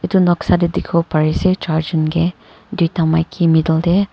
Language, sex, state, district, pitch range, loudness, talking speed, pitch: Nagamese, female, Nagaland, Kohima, 160-180 Hz, -16 LUFS, 175 wpm, 170 Hz